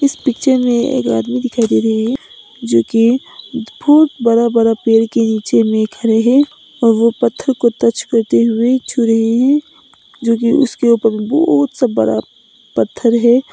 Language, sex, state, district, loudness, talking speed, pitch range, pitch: Hindi, female, Nagaland, Kohima, -14 LUFS, 170 wpm, 225-270 Hz, 235 Hz